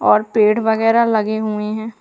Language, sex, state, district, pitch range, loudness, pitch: Hindi, female, Uttar Pradesh, Hamirpur, 215-220 Hz, -16 LUFS, 220 Hz